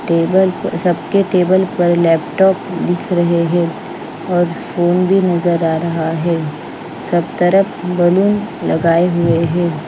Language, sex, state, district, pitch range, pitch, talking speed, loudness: Hindi, female, Bihar, Patna, 170-180 Hz, 175 Hz, 135 wpm, -15 LUFS